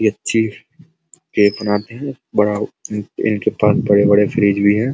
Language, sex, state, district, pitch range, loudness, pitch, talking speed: Hindi, male, Uttar Pradesh, Muzaffarnagar, 105-125 Hz, -17 LUFS, 105 Hz, 135 wpm